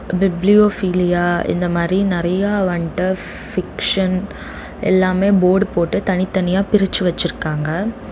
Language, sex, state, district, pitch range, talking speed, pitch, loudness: Tamil, female, Tamil Nadu, Chennai, 175-195 Hz, 90 wpm, 185 Hz, -17 LUFS